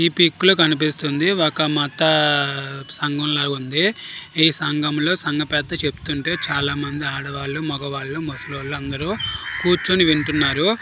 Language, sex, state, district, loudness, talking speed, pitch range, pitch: Telugu, male, Karnataka, Dharwad, -19 LUFS, 135 wpm, 140-160 Hz, 150 Hz